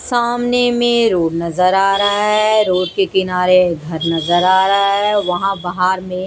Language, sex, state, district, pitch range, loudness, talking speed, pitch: Hindi, female, Odisha, Malkangiri, 180-210 Hz, -15 LUFS, 170 wpm, 190 Hz